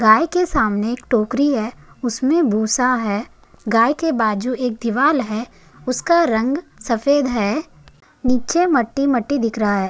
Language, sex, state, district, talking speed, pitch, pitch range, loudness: Hindi, female, Maharashtra, Chandrapur, 150 wpm, 250 Hz, 225-285 Hz, -18 LUFS